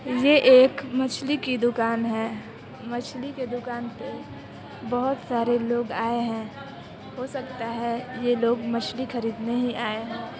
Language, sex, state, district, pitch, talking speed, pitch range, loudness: Hindi, female, Bihar, Purnia, 240 Hz, 145 wpm, 230-255 Hz, -25 LUFS